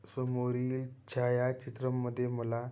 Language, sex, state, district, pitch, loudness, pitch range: Marathi, male, Maharashtra, Dhule, 125 Hz, -34 LUFS, 125-130 Hz